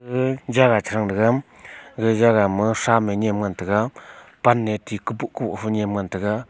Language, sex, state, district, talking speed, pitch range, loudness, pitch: Wancho, male, Arunachal Pradesh, Longding, 155 wpm, 105-120 Hz, -21 LUFS, 110 Hz